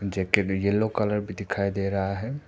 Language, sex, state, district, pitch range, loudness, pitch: Hindi, male, Arunachal Pradesh, Papum Pare, 100-105 Hz, -26 LUFS, 100 Hz